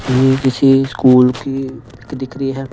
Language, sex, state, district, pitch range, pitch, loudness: Hindi, male, Punjab, Pathankot, 125-135 Hz, 130 Hz, -14 LUFS